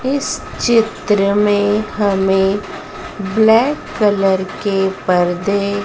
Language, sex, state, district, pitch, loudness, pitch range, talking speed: Hindi, female, Madhya Pradesh, Dhar, 205 Hz, -16 LUFS, 195-215 Hz, 80 wpm